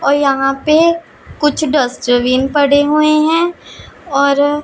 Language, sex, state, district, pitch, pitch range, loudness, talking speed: Hindi, female, Punjab, Pathankot, 290 Hz, 275-305 Hz, -13 LUFS, 115 wpm